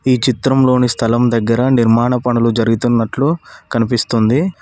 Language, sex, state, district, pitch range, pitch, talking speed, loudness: Telugu, male, Telangana, Mahabubabad, 115-130 Hz, 120 Hz, 105 wpm, -14 LUFS